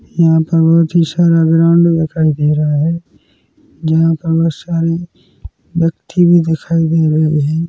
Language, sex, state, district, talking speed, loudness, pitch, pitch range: Hindi, male, Chhattisgarh, Korba, 155 wpm, -13 LUFS, 165 Hz, 160-170 Hz